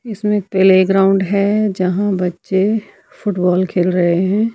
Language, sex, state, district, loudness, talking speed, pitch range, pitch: Hindi, female, Himachal Pradesh, Shimla, -15 LUFS, 130 wpm, 185-205 Hz, 195 Hz